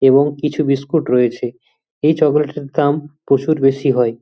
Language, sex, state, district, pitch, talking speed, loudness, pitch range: Bengali, male, West Bengal, Jhargram, 140 Hz, 155 wpm, -16 LUFS, 135-150 Hz